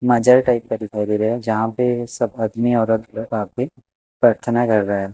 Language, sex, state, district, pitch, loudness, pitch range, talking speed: Hindi, male, Maharashtra, Mumbai Suburban, 115 Hz, -19 LUFS, 110-120 Hz, 210 wpm